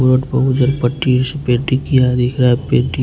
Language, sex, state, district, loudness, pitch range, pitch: Hindi, male, Punjab, Fazilka, -15 LUFS, 125-130 Hz, 130 Hz